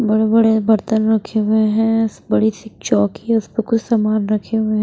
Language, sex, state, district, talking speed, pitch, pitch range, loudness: Hindi, female, Bihar, West Champaran, 210 wpm, 220 Hz, 215-225 Hz, -17 LUFS